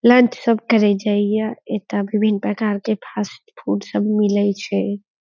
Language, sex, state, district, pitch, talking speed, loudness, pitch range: Maithili, female, Bihar, Saharsa, 210 Hz, 150 wpm, -19 LUFS, 200-215 Hz